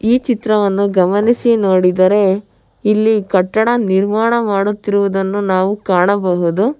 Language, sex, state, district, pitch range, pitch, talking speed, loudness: Kannada, female, Karnataka, Bangalore, 190-220 Hz, 205 Hz, 90 wpm, -14 LUFS